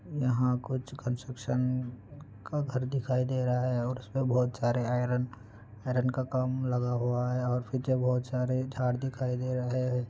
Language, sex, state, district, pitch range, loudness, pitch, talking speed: Hindi, male, Andhra Pradesh, Anantapur, 125-130 Hz, -31 LUFS, 125 Hz, 160 wpm